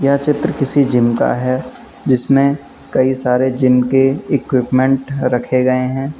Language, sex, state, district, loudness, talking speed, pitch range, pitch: Hindi, male, Uttar Pradesh, Lucknow, -15 LUFS, 135 wpm, 130-140 Hz, 130 Hz